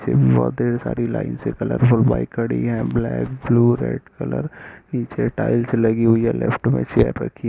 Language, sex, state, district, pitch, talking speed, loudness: Hindi, male, Jharkhand, Sahebganj, 110 Hz, 185 wpm, -20 LUFS